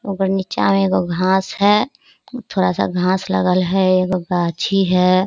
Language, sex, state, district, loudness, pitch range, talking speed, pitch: Hindi, female, Bihar, Kishanganj, -17 LUFS, 175-195 Hz, 150 wpm, 185 Hz